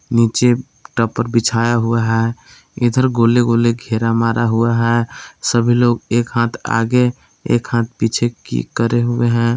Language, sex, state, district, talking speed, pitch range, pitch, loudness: Hindi, male, Jharkhand, Palamu, 150 wpm, 115-120 Hz, 115 Hz, -16 LUFS